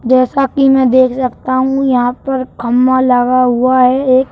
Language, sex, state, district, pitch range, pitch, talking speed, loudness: Hindi, male, Madhya Pradesh, Bhopal, 250-260 Hz, 255 Hz, 180 wpm, -12 LUFS